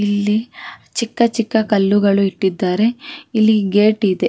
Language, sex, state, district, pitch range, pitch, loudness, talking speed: Kannada, female, Karnataka, Raichur, 200-230 Hz, 210 Hz, -16 LUFS, 110 wpm